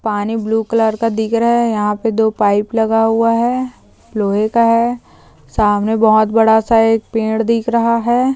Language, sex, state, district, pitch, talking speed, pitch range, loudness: Hindi, female, Maharashtra, Solapur, 225 Hz, 185 wpm, 220-230 Hz, -14 LUFS